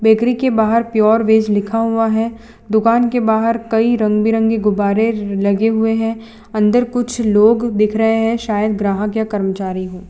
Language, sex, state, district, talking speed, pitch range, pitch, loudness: Hindi, female, Gujarat, Valsad, 170 wpm, 210-230 Hz, 220 Hz, -15 LUFS